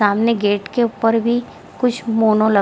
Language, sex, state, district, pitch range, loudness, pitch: Hindi, female, Bihar, Jahanabad, 210-235 Hz, -17 LUFS, 225 Hz